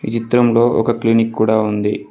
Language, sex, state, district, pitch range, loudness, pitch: Telugu, male, Telangana, Mahabubabad, 110-115 Hz, -15 LUFS, 115 Hz